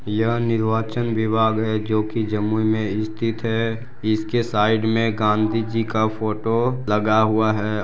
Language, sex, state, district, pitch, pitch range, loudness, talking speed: Hindi, male, Bihar, Jamui, 110 Hz, 110-115 Hz, -21 LUFS, 145 wpm